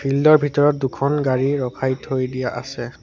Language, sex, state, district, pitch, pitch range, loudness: Assamese, male, Assam, Sonitpur, 135 Hz, 130-145 Hz, -20 LUFS